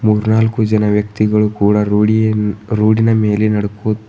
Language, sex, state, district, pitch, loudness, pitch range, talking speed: Kannada, male, Karnataka, Bidar, 105 Hz, -14 LUFS, 105-110 Hz, 115 wpm